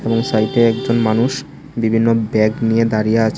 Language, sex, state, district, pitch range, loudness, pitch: Bengali, male, Tripura, Unakoti, 110-115 Hz, -16 LUFS, 115 Hz